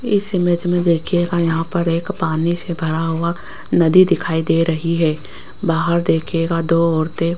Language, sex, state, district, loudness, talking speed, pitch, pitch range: Hindi, female, Rajasthan, Jaipur, -17 LUFS, 170 wpm, 165 Hz, 165-175 Hz